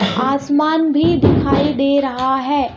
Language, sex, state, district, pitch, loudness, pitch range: Hindi, female, Madhya Pradesh, Bhopal, 280 Hz, -15 LUFS, 265-295 Hz